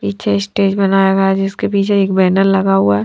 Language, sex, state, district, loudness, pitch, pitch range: Hindi, female, Punjab, Fazilka, -14 LUFS, 195 Hz, 185-195 Hz